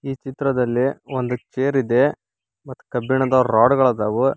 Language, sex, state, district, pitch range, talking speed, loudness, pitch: Kannada, male, Karnataka, Koppal, 125-135 Hz, 125 wpm, -19 LUFS, 130 Hz